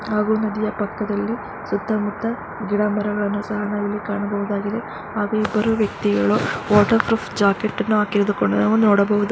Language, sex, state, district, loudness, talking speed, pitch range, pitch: Kannada, female, Karnataka, Mysore, -21 LUFS, 90 wpm, 205-215 Hz, 210 Hz